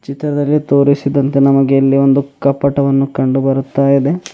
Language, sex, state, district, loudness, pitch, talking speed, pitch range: Kannada, male, Karnataka, Bidar, -13 LUFS, 140 Hz, 110 wpm, 135-140 Hz